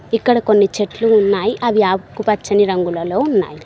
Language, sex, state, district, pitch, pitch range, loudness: Telugu, female, Telangana, Mahabubabad, 205 Hz, 190-225 Hz, -16 LUFS